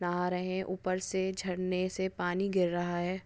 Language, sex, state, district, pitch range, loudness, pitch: Hindi, female, Maharashtra, Dhule, 180-190 Hz, -33 LUFS, 185 Hz